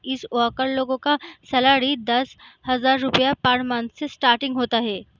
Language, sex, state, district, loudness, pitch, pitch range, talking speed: Hindi, female, Bihar, Sitamarhi, -21 LUFS, 260 Hz, 245-270 Hz, 160 wpm